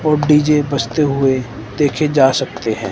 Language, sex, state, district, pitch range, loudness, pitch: Hindi, male, Himachal Pradesh, Shimla, 120-150 Hz, -15 LUFS, 140 Hz